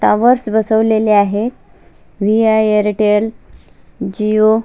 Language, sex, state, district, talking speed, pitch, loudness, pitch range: Marathi, female, Maharashtra, Sindhudurg, 90 wpm, 215 Hz, -14 LUFS, 210-220 Hz